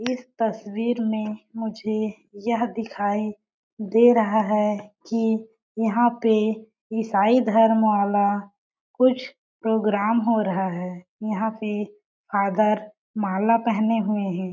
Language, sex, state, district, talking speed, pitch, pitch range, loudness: Hindi, female, Chhattisgarh, Balrampur, 110 wpm, 215 Hz, 210-225 Hz, -23 LUFS